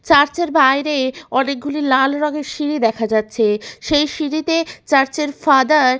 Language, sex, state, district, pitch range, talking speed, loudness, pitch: Bengali, female, West Bengal, Malda, 265-300 Hz, 160 wpm, -17 LUFS, 290 Hz